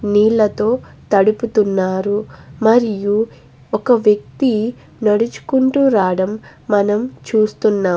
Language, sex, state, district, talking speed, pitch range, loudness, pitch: Telugu, female, Andhra Pradesh, Guntur, 85 wpm, 200-230 Hz, -16 LUFS, 215 Hz